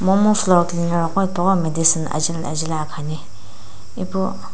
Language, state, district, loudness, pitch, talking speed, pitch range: Sumi, Nagaland, Dimapur, -19 LUFS, 165 Hz, 120 wpm, 155-190 Hz